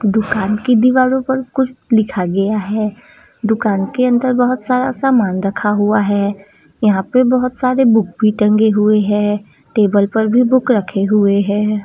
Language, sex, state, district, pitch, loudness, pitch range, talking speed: Hindi, female, Bihar, Saran, 215 Hz, -15 LUFS, 205-250 Hz, 145 wpm